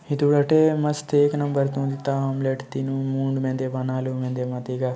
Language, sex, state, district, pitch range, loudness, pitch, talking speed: Halbi, male, Chhattisgarh, Bastar, 130-145 Hz, -23 LUFS, 135 Hz, 180 wpm